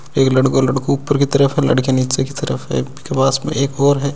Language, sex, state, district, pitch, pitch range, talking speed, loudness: Hindi, male, Rajasthan, Nagaur, 135 Hz, 135-140 Hz, 260 wpm, -16 LUFS